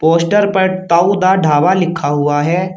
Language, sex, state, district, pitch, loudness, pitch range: Hindi, male, Uttar Pradesh, Shamli, 180 Hz, -13 LUFS, 160-190 Hz